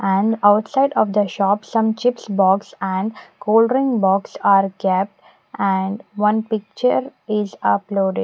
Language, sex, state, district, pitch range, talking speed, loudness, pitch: English, female, Punjab, Pathankot, 195-220 Hz, 140 wpm, -19 LUFS, 205 Hz